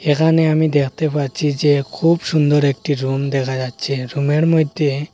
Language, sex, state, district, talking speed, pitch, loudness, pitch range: Bengali, male, Assam, Hailakandi, 150 wpm, 145 Hz, -17 LUFS, 140-155 Hz